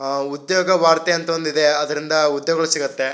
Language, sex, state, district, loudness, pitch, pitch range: Kannada, male, Karnataka, Shimoga, -18 LUFS, 155 Hz, 145-165 Hz